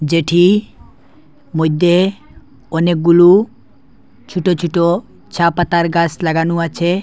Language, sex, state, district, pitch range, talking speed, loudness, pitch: Bengali, male, Assam, Hailakandi, 165-175 Hz, 85 wpm, -14 LUFS, 170 Hz